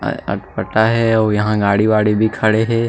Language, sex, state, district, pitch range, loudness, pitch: Chhattisgarhi, male, Chhattisgarh, Sarguja, 105-115 Hz, -16 LUFS, 110 Hz